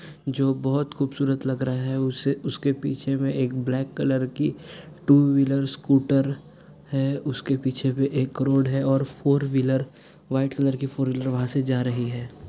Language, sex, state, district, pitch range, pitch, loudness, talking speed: Hindi, male, Jharkhand, Sahebganj, 130-140 Hz, 135 Hz, -24 LUFS, 180 wpm